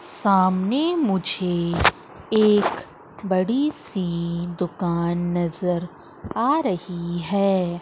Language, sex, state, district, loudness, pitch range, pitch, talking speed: Hindi, female, Madhya Pradesh, Umaria, -22 LUFS, 170-200 Hz, 180 Hz, 75 wpm